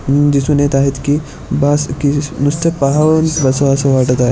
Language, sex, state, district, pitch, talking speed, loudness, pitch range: Marathi, male, Maharashtra, Pune, 145 Hz, 180 wpm, -14 LUFS, 135-145 Hz